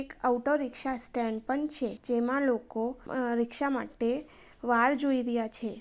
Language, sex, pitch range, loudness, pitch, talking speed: Gujarati, female, 235-270 Hz, -30 LUFS, 250 Hz, 175 wpm